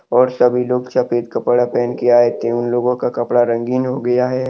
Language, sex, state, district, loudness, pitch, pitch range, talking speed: Hindi, male, Jharkhand, Deoghar, -16 LUFS, 125 Hz, 120-125 Hz, 225 wpm